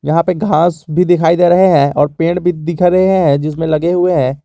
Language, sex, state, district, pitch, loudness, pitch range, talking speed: Hindi, male, Jharkhand, Garhwa, 170 Hz, -12 LUFS, 155-180 Hz, 245 wpm